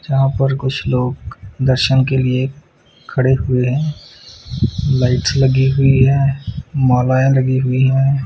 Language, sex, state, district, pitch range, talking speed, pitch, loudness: Hindi, male, Punjab, Kapurthala, 125-135 Hz, 130 wpm, 130 Hz, -15 LUFS